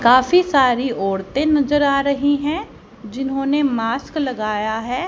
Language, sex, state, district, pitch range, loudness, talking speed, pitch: Hindi, female, Haryana, Charkhi Dadri, 230-285 Hz, -18 LUFS, 130 wpm, 270 Hz